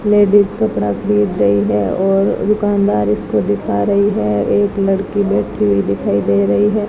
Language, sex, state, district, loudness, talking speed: Hindi, female, Rajasthan, Bikaner, -15 LUFS, 165 wpm